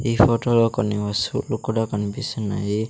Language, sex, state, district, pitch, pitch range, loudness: Telugu, male, Andhra Pradesh, Sri Satya Sai, 110 Hz, 105-115 Hz, -22 LUFS